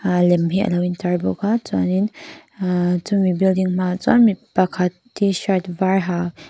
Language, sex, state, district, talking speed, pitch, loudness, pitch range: Mizo, female, Mizoram, Aizawl, 205 wpm, 185 Hz, -19 LUFS, 180-200 Hz